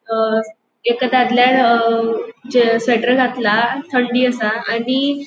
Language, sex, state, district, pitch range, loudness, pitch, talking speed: Konkani, female, Goa, North and South Goa, 230-255 Hz, -16 LUFS, 240 Hz, 115 wpm